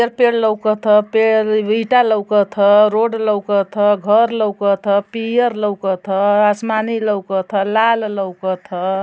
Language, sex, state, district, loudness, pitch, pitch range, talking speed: Bhojpuri, female, Uttar Pradesh, Ghazipur, -16 LUFS, 210 Hz, 200-220 Hz, 105 wpm